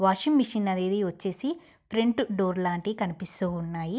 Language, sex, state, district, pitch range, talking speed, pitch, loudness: Telugu, female, Andhra Pradesh, Guntur, 185-230 Hz, 135 wpm, 195 Hz, -28 LUFS